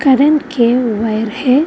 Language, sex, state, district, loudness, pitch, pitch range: Hindi, female, Bihar, Vaishali, -14 LUFS, 250 Hz, 225-285 Hz